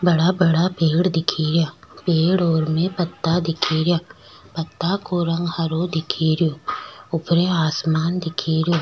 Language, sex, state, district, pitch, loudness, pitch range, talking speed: Rajasthani, female, Rajasthan, Nagaur, 165 Hz, -20 LUFS, 160-175 Hz, 145 wpm